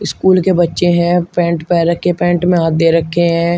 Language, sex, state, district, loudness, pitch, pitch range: Hindi, male, Uttar Pradesh, Shamli, -13 LUFS, 175 Hz, 170-175 Hz